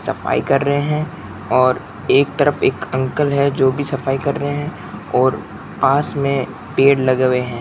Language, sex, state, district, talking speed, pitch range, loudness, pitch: Hindi, male, Rajasthan, Bikaner, 180 wpm, 130-145 Hz, -17 LUFS, 135 Hz